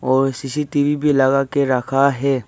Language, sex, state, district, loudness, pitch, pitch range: Hindi, male, Arunachal Pradesh, Papum Pare, -18 LUFS, 135 Hz, 135-145 Hz